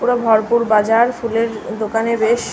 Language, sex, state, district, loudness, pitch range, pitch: Bengali, female, West Bengal, North 24 Parganas, -16 LUFS, 220-235 Hz, 230 Hz